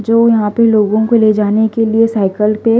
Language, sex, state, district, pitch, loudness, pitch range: Hindi, female, Delhi, New Delhi, 220 Hz, -12 LUFS, 210-230 Hz